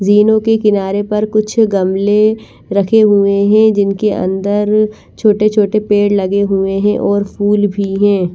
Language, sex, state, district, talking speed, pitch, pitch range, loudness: Hindi, female, Chandigarh, Chandigarh, 150 wpm, 205 Hz, 200-215 Hz, -13 LUFS